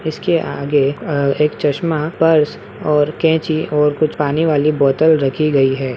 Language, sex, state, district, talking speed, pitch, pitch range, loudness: Hindi, female, Bihar, Saharsa, 160 wpm, 150 Hz, 145-160 Hz, -16 LUFS